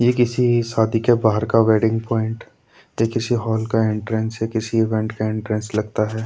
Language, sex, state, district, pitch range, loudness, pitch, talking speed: Hindi, male, Uttarakhand, Tehri Garhwal, 110-115 Hz, -20 LUFS, 110 Hz, 190 wpm